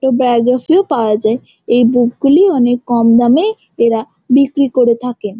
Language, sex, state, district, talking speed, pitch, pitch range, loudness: Bengali, female, West Bengal, Jhargram, 155 wpm, 245 Hz, 235-270 Hz, -12 LUFS